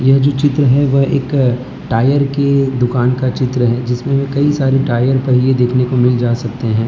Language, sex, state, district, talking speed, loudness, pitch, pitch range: Hindi, male, Gujarat, Valsad, 210 wpm, -14 LUFS, 130 Hz, 125-140 Hz